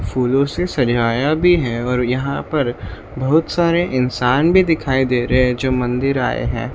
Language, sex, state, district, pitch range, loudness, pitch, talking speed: Hindi, male, Maharashtra, Mumbai Suburban, 125-150 Hz, -17 LUFS, 130 Hz, 180 wpm